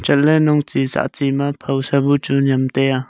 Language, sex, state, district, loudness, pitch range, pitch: Wancho, male, Arunachal Pradesh, Longding, -17 LUFS, 135-140 Hz, 140 Hz